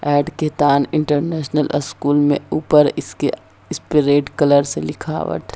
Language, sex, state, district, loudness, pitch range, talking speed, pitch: Hindi, female, Bihar, Jahanabad, -17 LUFS, 145-150 Hz, 160 wpm, 145 Hz